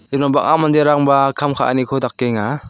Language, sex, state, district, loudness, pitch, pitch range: Garo, male, Meghalaya, South Garo Hills, -15 LUFS, 140 Hz, 130-145 Hz